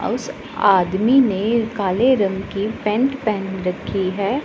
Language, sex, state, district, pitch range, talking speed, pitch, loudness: Hindi, female, Punjab, Pathankot, 190-235 Hz, 135 wpm, 205 Hz, -19 LUFS